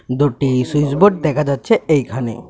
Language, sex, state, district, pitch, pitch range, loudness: Bengali, male, Tripura, West Tripura, 145 Hz, 130-155 Hz, -16 LUFS